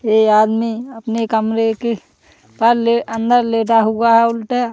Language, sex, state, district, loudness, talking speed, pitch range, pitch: Hindi, female, Uttar Pradesh, Hamirpur, -15 LUFS, 140 wpm, 225-235 Hz, 230 Hz